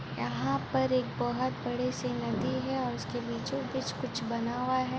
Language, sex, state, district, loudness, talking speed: Hindi, female, Jharkhand, Jamtara, -32 LUFS, 205 wpm